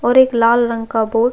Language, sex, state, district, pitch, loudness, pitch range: Hindi, female, Chhattisgarh, Jashpur, 235 Hz, -15 LUFS, 230-240 Hz